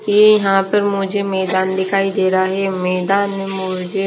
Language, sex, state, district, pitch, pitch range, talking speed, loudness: Hindi, female, Haryana, Charkhi Dadri, 195 Hz, 190-200 Hz, 175 wpm, -16 LUFS